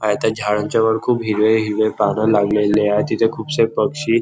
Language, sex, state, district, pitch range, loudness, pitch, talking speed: Marathi, male, Maharashtra, Nagpur, 105-115 Hz, -17 LUFS, 110 Hz, 185 wpm